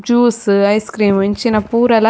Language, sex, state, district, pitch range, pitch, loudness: Tulu, female, Karnataka, Dakshina Kannada, 200-235 Hz, 220 Hz, -14 LUFS